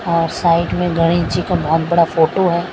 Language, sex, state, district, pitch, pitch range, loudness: Hindi, female, Maharashtra, Mumbai Suburban, 170 Hz, 165-175 Hz, -16 LUFS